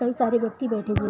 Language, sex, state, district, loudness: Hindi, female, Jharkhand, Sahebganj, -25 LUFS